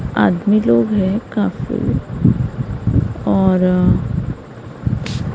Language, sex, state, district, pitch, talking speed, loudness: Hindi, female, Maharashtra, Gondia, 180 Hz, 65 wpm, -17 LUFS